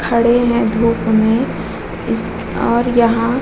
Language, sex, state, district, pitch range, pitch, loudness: Hindi, female, Bihar, Vaishali, 230-240 Hz, 235 Hz, -16 LUFS